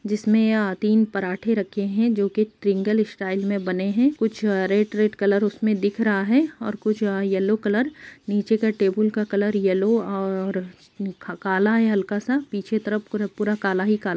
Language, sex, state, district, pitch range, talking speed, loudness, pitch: Hindi, female, Jharkhand, Sahebganj, 195-220 Hz, 175 wpm, -22 LUFS, 210 Hz